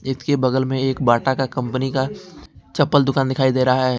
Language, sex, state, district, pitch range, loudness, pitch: Hindi, male, Jharkhand, Ranchi, 130-135 Hz, -19 LUFS, 130 Hz